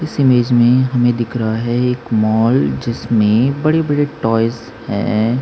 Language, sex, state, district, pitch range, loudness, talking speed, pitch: Hindi, male, Chhattisgarh, Sukma, 115-130 Hz, -15 LUFS, 155 wpm, 120 Hz